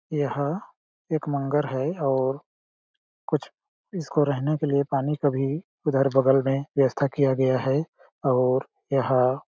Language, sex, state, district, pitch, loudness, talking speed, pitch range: Hindi, male, Chhattisgarh, Balrampur, 140 Hz, -25 LUFS, 145 wpm, 135-150 Hz